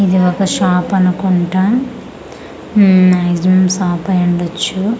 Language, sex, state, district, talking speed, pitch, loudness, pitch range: Telugu, female, Andhra Pradesh, Manyam, 95 wpm, 185 Hz, -13 LUFS, 180-195 Hz